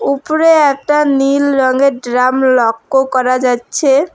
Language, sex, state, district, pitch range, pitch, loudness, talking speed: Bengali, female, West Bengal, Alipurduar, 255-285 Hz, 270 Hz, -12 LUFS, 115 wpm